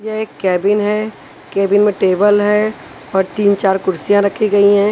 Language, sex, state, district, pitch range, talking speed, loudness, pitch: Hindi, female, Punjab, Pathankot, 195-210 Hz, 185 wpm, -14 LUFS, 205 Hz